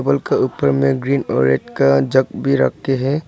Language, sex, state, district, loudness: Hindi, male, Arunachal Pradesh, Papum Pare, -17 LUFS